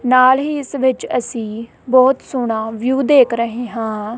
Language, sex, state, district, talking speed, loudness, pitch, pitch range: Punjabi, female, Punjab, Kapurthala, 155 wpm, -16 LUFS, 245 Hz, 230-260 Hz